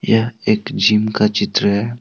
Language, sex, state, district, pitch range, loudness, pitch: Hindi, male, Jharkhand, Deoghar, 105-135 Hz, -16 LUFS, 115 Hz